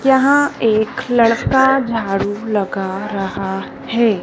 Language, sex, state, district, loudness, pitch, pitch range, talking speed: Hindi, female, Madhya Pradesh, Dhar, -16 LUFS, 225 Hz, 195-260 Hz, 100 wpm